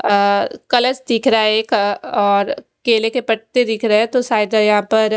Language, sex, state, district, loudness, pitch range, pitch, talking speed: Hindi, female, Odisha, Khordha, -16 LUFS, 210-245 Hz, 220 Hz, 175 wpm